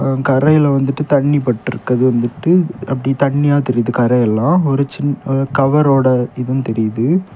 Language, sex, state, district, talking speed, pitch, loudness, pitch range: Tamil, male, Tamil Nadu, Kanyakumari, 120 wpm, 135 Hz, -15 LUFS, 125-145 Hz